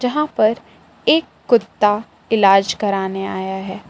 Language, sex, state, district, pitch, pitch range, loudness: Hindi, female, Jharkhand, Palamu, 205 Hz, 195-230 Hz, -18 LUFS